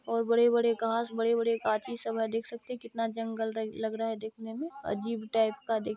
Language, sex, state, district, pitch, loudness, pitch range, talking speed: Hindi, female, Bihar, Kishanganj, 225 Hz, -31 LUFS, 225-230 Hz, 160 wpm